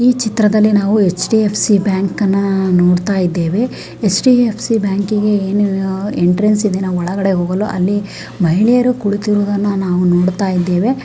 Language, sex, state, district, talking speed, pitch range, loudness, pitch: Kannada, female, Karnataka, Dharwad, 105 wpm, 185-210 Hz, -14 LUFS, 200 Hz